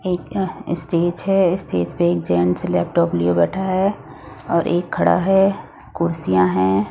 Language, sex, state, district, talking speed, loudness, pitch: Hindi, female, Odisha, Nuapada, 150 wpm, -19 LUFS, 170 Hz